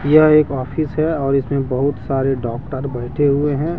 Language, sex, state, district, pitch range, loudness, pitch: Hindi, male, Jharkhand, Deoghar, 135-150 Hz, -18 LUFS, 140 Hz